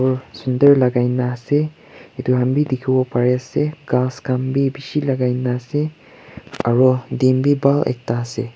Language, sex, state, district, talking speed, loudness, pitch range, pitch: Nagamese, male, Nagaland, Kohima, 160 wpm, -18 LUFS, 125-140 Hz, 130 Hz